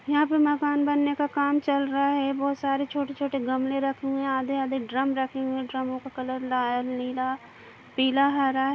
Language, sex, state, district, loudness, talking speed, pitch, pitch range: Hindi, female, Chhattisgarh, Kabirdham, -26 LUFS, 225 wpm, 275 Hz, 260-280 Hz